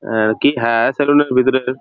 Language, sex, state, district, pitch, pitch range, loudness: Bengali, male, West Bengal, Jalpaiguri, 130 Hz, 115-140 Hz, -15 LUFS